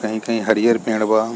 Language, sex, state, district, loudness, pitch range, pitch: Bhojpuri, male, Bihar, East Champaran, -18 LUFS, 110-115 Hz, 110 Hz